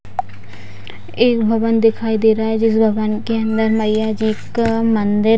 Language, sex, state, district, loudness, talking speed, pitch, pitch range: Hindi, female, Bihar, Purnia, -17 LUFS, 165 wpm, 220 Hz, 215-225 Hz